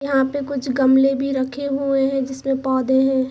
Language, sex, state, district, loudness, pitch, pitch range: Hindi, female, Jharkhand, Sahebganj, -19 LUFS, 270 Hz, 265-275 Hz